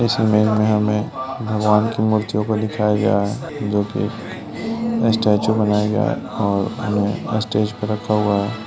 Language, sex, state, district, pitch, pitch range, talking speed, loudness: Hindi, male, Bihar, Lakhisarai, 105 Hz, 105-110 Hz, 160 wpm, -19 LUFS